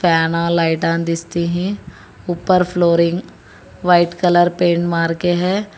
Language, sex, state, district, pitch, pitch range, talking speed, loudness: Hindi, female, Telangana, Hyderabad, 175 Hz, 170-180 Hz, 125 wpm, -17 LUFS